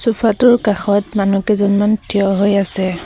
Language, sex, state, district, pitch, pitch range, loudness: Assamese, female, Assam, Sonitpur, 205 Hz, 195-215 Hz, -15 LUFS